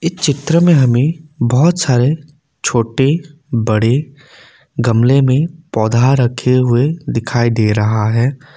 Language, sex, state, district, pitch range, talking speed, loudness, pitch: Hindi, male, Assam, Kamrup Metropolitan, 120-150 Hz, 110 wpm, -14 LUFS, 130 Hz